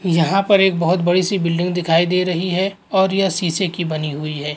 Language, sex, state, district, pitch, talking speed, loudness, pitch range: Hindi, male, Uttar Pradesh, Muzaffarnagar, 180 Hz, 235 wpm, -18 LUFS, 170-190 Hz